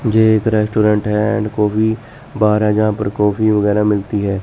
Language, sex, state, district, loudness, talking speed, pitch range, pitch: Hindi, male, Chandigarh, Chandigarh, -15 LUFS, 190 wpm, 105-110 Hz, 105 Hz